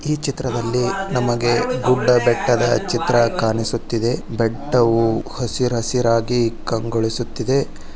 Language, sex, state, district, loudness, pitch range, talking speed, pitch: Kannada, male, Karnataka, Bijapur, -19 LUFS, 115-125 Hz, 85 wpm, 120 Hz